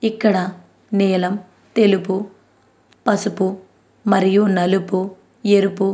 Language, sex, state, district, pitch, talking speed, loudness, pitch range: Telugu, female, Andhra Pradesh, Anantapur, 195 Hz, 80 wpm, -19 LUFS, 190-205 Hz